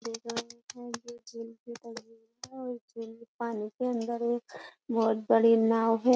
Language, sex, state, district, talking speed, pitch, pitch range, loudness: Hindi, female, Uttar Pradesh, Jyotiba Phule Nagar, 105 wpm, 230 Hz, 230-240 Hz, -30 LUFS